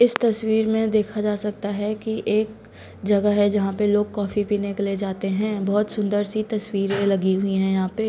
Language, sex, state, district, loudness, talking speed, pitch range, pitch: Hindi, female, Bihar, Patna, -22 LUFS, 215 wpm, 200-215 Hz, 205 Hz